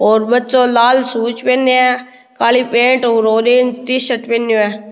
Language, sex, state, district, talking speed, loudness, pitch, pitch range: Rajasthani, male, Rajasthan, Nagaur, 160 wpm, -13 LUFS, 245 Hz, 230-250 Hz